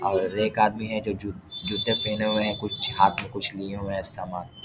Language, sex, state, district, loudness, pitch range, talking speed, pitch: Hindi, male, Bihar, Jahanabad, -26 LUFS, 95-105 Hz, 230 wpm, 100 Hz